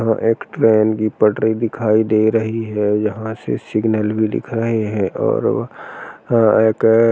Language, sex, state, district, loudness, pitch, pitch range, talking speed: Hindi, male, Uttar Pradesh, Jalaun, -17 LUFS, 110 Hz, 110-115 Hz, 170 wpm